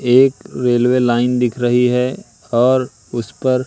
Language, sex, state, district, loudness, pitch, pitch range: Hindi, male, Madhya Pradesh, Katni, -16 LUFS, 125 Hz, 120-130 Hz